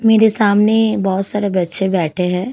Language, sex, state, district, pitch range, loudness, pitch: Hindi, female, Punjab, Pathankot, 185-220 Hz, -15 LUFS, 200 Hz